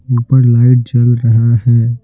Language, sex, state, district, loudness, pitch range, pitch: Hindi, male, Bihar, Patna, -10 LUFS, 120-125 Hz, 120 Hz